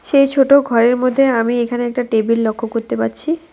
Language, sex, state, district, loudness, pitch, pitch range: Bengali, female, West Bengal, Alipurduar, -15 LUFS, 240 Hz, 230-275 Hz